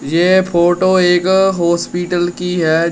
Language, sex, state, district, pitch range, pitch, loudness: Hindi, male, Uttar Pradesh, Shamli, 170-185 Hz, 175 Hz, -13 LUFS